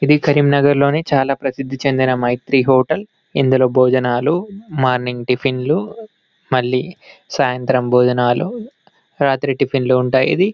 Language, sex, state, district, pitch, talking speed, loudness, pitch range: Telugu, male, Telangana, Karimnagar, 135 Hz, 110 wpm, -16 LUFS, 130-150 Hz